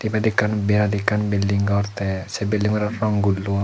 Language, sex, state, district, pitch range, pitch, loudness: Chakma, male, Tripura, Dhalai, 100-105 Hz, 105 Hz, -21 LUFS